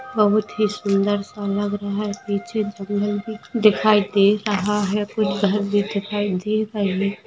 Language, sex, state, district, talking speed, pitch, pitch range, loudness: Hindi, female, Maharashtra, Pune, 155 wpm, 205 Hz, 200-210 Hz, -21 LUFS